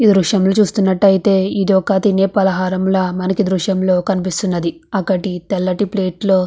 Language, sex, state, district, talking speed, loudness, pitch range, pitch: Telugu, female, Andhra Pradesh, Visakhapatnam, 155 wpm, -16 LUFS, 185-195 Hz, 190 Hz